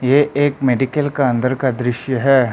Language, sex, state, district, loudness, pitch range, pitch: Hindi, male, Arunachal Pradesh, Lower Dibang Valley, -17 LUFS, 125-140 Hz, 130 Hz